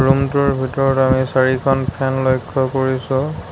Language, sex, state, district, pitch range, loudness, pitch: Assamese, male, Assam, Sonitpur, 130-135 Hz, -17 LUFS, 130 Hz